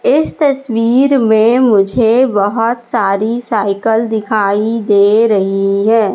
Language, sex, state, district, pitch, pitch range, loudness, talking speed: Hindi, female, Madhya Pradesh, Katni, 225 Hz, 205-240 Hz, -12 LUFS, 105 wpm